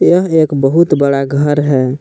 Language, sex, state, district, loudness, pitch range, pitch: Hindi, male, Jharkhand, Palamu, -12 LUFS, 140-160 Hz, 145 Hz